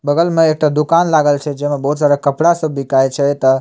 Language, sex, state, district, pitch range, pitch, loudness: Maithili, male, Bihar, Samastipur, 140-155 Hz, 145 Hz, -14 LUFS